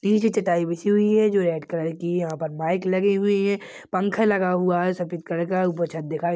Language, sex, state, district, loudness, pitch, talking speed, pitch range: Hindi, male, Chhattisgarh, Balrampur, -23 LUFS, 180 Hz, 245 wpm, 170-200 Hz